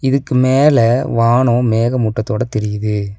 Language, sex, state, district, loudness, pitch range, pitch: Tamil, male, Tamil Nadu, Nilgiris, -14 LUFS, 110-130 Hz, 120 Hz